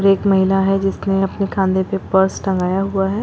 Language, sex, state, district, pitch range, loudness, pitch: Hindi, female, Chhattisgarh, Bilaspur, 190-195 Hz, -17 LUFS, 195 Hz